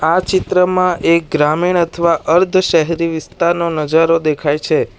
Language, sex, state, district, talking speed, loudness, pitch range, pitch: Gujarati, male, Gujarat, Valsad, 145 wpm, -14 LUFS, 160-180 Hz, 170 Hz